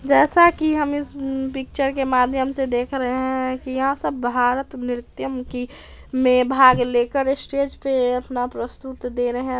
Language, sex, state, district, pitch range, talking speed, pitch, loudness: Hindi, female, Bihar, Darbhanga, 250-270 Hz, 175 wpm, 260 Hz, -21 LUFS